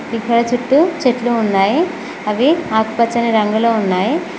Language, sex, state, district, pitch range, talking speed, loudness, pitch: Telugu, female, Telangana, Mahabubabad, 220-260 Hz, 95 wpm, -15 LUFS, 235 Hz